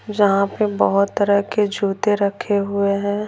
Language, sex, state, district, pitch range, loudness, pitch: Hindi, female, Bihar, Patna, 200-210 Hz, -19 LUFS, 200 Hz